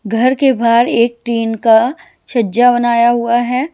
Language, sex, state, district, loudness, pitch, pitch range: Hindi, female, Himachal Pradesh, Shimla, -13 LUFS, 235 Hz, 230-245 Hz